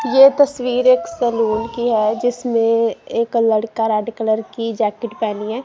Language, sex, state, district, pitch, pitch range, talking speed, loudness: Hindi, female, Punjab, Kapurthala, 230 Hz, 220-245 Hz, 160 wpm, -17 LUFS